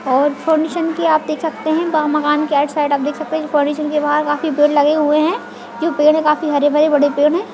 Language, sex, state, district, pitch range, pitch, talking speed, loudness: Hindi, female, Chhattisgarh, Bilaspur, 295-315 Hz, 300 Hz, 245 wpm, -16 LUFS